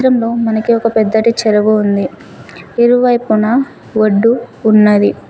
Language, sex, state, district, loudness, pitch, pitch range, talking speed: Telugu, female, Telangana, Mahabubabad, -12 LUFS, 220 Hz, 210-235 Hz, 100 wpm